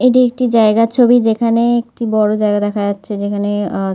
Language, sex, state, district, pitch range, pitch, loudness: Bengali, female, West Bengal, North 24 Parganas, 205-240 Hz, 220 Hz, -14 LUFS